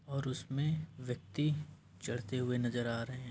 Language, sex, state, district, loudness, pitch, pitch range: Hindi, male, Uttar Pradesh, Varanasi, -38 LUFS, 130 Hz, 120-145 Hz